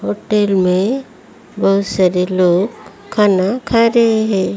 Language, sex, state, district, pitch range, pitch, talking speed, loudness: Hindi, female, Odisha, Malkangiri, 185-220 Hz, 200 Hz, 120 wpm, -15 LUFS